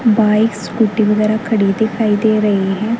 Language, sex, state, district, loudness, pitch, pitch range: Hindi, female, Haryana, Rohtak, -15 LUFS, 215 Hz, 210-220 Hz